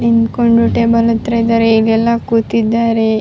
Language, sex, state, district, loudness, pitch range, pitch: Kannada, female, Karnataka, Raichur, -12 LUFS, 225-230 Hz, 230 Hz